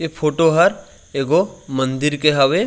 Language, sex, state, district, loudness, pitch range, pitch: Chhattisgarhi, male, Chhattisgarh, Raigarh, -17 LUFS, 135-165 Hz, 150 Hz